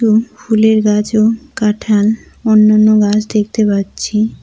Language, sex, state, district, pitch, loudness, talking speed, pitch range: Bengali, female, West Bengal, Cooch Behar, 215 Hz, -13 LUFS, 110 wpm, 210-220 Hz